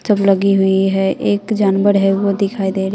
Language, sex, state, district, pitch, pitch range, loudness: Hindi, female, Bihar, West Champaran, 195 Hz, 195-200 Hz, -15 LUFS